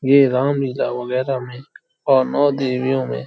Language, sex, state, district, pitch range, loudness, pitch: Hindi, male, Uttar Pradesh, Hamirpur, 125-135 Hz, -19 LUFS, 130 Hz